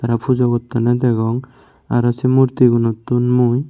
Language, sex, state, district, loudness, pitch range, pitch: Chakma, male, Tripura, Unakoti, -16 LUFS, 120-125 Hz, 120 Hz